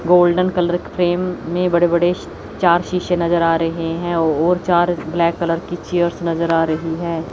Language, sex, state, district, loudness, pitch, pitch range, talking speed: Hindi, female, Chandigarh, Chandigarh, -18 LUFS, 175 Hz, 165-175 Hz, 180 wpm